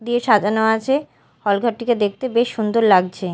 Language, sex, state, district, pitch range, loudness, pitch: Bengali, female, Odisha, Malkangiri, 205-240 Hz, -18 LUFS, 220 Hz